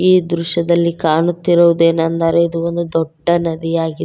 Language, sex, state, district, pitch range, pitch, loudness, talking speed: Kannada, female, Karnataka, Koppal, 165-170 Hz, 170 Hz, -15 LUFS, 120 wpm